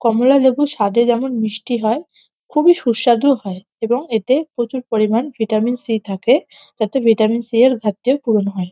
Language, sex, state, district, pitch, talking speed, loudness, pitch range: Bengali, female, West Bengal, North 24 Parganas, 235 Hz, 160 wpm, -17 LUFS, 220-260 Hz